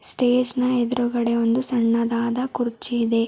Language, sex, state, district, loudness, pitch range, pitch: Kannada, female, Karnataka, Bidar, -20 LUFS, 235-250 Hz, 240 Hz